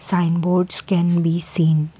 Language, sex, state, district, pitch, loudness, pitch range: English, female, Assam, Kamrup Metropolitan, 170 Hz, -17 LUFS, 165-180 Hz